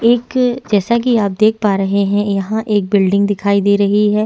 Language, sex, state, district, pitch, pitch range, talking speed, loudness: Hindi, female, Chhattisgarh, Korba, 205 Hz, 200-220 Hz, 210 wpm, -14 LUFS